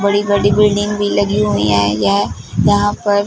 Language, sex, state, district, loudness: Hindi, female, Punjab, Fazilka, -14 LUFS